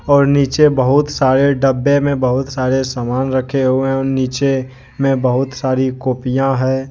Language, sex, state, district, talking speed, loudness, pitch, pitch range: Hindi, male, Jharkhand, Deoghar, 165 wpm, -15 LUFS, 135 Hz, 130-135 Hz